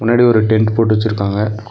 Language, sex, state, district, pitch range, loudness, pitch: Tamil, male, Tamil Nadu, Nilgiris, 105-115 Hz, -14 LUFS, 110 Hz